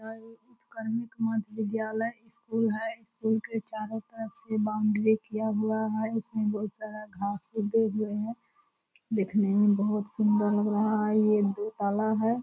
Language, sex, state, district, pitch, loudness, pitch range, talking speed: Hindi, female, Bihar, Purnia, 220 Hz, -28 LUFS, 210-225 Hz, 170 wpm